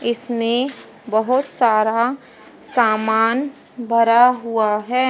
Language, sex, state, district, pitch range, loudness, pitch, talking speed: Hindi, female, Haryana, Jhajjar, 225-250 Hz, -18 LUFS, 235 Hz, 80 wpm